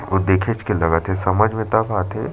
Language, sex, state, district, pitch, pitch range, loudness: Chhattisgarhi, male, Chhattisgarh, Sarguja, 100 Hz, 95-110 Hz, -19 LUFS